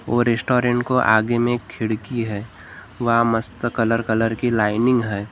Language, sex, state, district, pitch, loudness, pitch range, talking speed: Hindi, male, Maharashtra, Gondia, 115 Hz, -20 LUFS, 110-120 Hz, 160 wpm